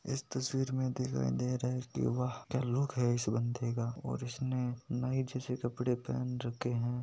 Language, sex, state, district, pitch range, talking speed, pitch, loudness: Hindi, male, Rajasthan, Nagaur, 120-130 Hz, 195 wpm, 125 Hz, -35 LUFS